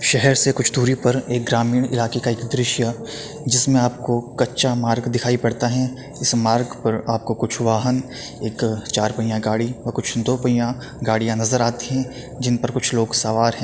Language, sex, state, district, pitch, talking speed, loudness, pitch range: Hindi, male, Uttar Pradesh, Etah, 120 Hz, 195 wpm, -20 LUFS, 115-125 Hz